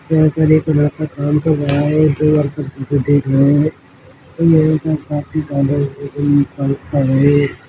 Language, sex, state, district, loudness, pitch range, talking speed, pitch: Hindi, male, Chhattisgarh, Jashpur, -15 LUFS, 140-155 Hz, 170 wpm, 145 Hz